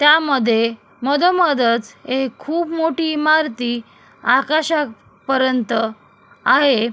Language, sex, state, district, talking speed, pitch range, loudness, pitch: Marathi, female, Maharashtra, Solapur, 95 wpm, 240-315 Hz, -18 LUFS, 275 Hz